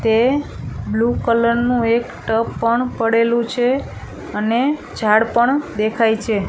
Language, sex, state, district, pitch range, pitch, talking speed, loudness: Gujarati, female, Gujarat, Gandhinagar, 225-245 Hz, 230 Hz, 120 wpm, -18 LUFS